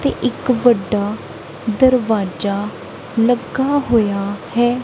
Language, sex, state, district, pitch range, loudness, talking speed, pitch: Punjabi, female, Punjab, Kapurthala, 205-245 Hz, -18 LUFS, 85 wpm, 230 Hz